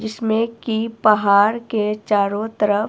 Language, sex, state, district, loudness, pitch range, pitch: Hindi, female, Himachal Pradesh, Shimla, -19 LUFS, 210-225 Hz, 215 Hz